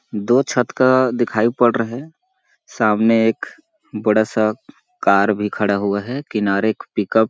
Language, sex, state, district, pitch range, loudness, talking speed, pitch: Hindi, male, Chhattisgarh, Balrampur, 105-130 Hz, -18 LUFS, 165 wpm, 115 Hz